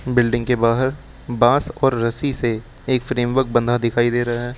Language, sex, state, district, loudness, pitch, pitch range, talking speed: Hindi, male, Uttar Pradesh, Lucknow, -19 LUFS, 120 Hz, 120-130 Hz, 185 wpm